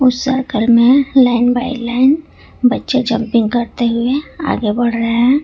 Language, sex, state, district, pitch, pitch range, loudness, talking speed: Hindi, female, Jharkhand, Ranchi, 245 Hz, 235-260 Hz, -14 LUFS, 145 wpm